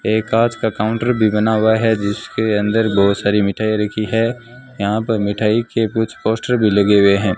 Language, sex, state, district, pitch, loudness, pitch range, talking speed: Hindi, male, Rajasthan, Bikaner, 110 Hz, -16 LUFS, 105-115 Hz, 205 wpm